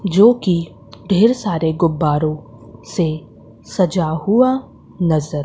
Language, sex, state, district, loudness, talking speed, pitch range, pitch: Hindi, female, Madhya Pradesh, Umaria, -17 LUFS, 100 wpm, 155-195 Hz, 170 Hz